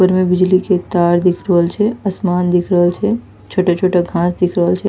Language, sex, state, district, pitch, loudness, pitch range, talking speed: Angika, female, Bihar, Bhagalpur, 180 Hz, -15 LUFS, 175-185 Hz, 210 wpm